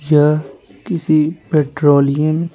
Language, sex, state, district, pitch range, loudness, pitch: Hindi, male, Bihar, Patna, 145-160 Hz, -15 LUFS, 150 Hz